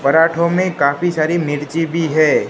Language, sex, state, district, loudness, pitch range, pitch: Hindi, female, Gujarat, Gandhinagar, -16 LUFS, 155-170 Hz, 165 Hz